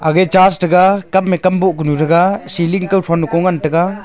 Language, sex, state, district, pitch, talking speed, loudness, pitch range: Wancho, male, Arunachal Pradesh, Longding, 185 Hz, 220 wpm, -13 LUFS, 170-190 Hz